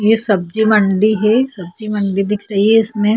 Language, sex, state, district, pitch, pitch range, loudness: Hindi, female, Chhattisgarh, Korba, 210 Hz, 200-220 Hz, -15 LUFS